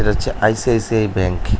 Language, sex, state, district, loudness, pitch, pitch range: Bengali, male, West Bengal, North 24 Parganas, -18 LUFS, 105 Hz, 95-110 Hz